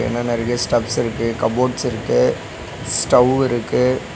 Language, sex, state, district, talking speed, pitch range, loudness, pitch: Tamil, male, Tamil Nadu, Nilgiris, 115 wpm, 115-125 Hz, -18 LUFS, 120 Hz